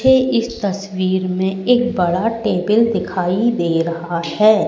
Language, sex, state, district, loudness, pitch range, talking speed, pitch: Hindi, female, Madhya Pradesh, Katni, -17 LUFS, 180-230 Hz, 130 wpm, 195 Hz